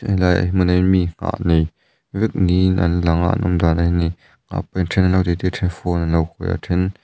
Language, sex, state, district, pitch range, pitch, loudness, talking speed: Mizo, male, Mizoram, Aizawl, 85-95 Hz, 90 Hz, -19 LUFS, 265 wpm